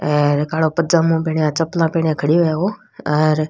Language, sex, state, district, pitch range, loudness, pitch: Rajasthani, female, Rajasthan, Nagaur, 155-165 Hz, -17 LUFS, 160 Hz